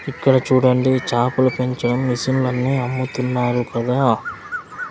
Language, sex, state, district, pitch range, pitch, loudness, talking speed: Telugu, male, Andhra Pradesh, Sri Satya Sai, 125-130 Hz, 125 Hz, -19 LUFS, 85 wpm